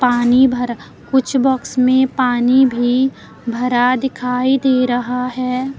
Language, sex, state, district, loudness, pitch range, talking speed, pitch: Hindi, female, Uttar Pradesh, Lucknow, -16 LUFS, 245-260 Hz, 125 wpm, 250 Hz